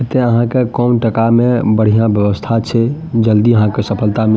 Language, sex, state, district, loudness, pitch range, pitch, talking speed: Maithili, male, Bihar, Madhepura, -13 LUFS, 110-120 Hz, 115 Hz, 220 wpm